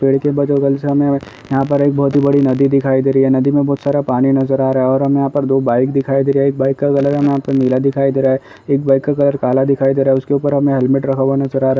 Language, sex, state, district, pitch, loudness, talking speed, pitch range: Hindi, male, Bihar, Gaya, 135 Hz, -14 LUFS, 295 wpm, 135-140 Hz